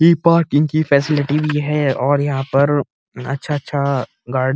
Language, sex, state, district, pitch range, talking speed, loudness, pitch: Hindi, male, Uttar Pradesh, Muzaffarnagar, 135-150 Hz, 160 wpm, -17 LUFS, 145 Hz